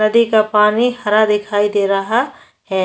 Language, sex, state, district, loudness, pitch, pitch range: Hindi, female, Chhattisgarh, Kabirdham, -15 LUFS, 215 Hz, 205-230 Hz